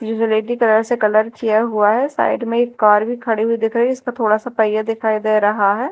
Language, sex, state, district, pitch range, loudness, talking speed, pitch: Hindi, female, Madhya Pradesh, Dhar, 215-235 Hz, -17 LUFS, 255 wpm, 225 Hz